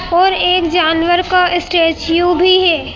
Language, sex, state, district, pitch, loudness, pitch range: Hindi, female, Madhya Pradesh, Bhopal, 350 Hz, -12 LUFS, 335-360 Hz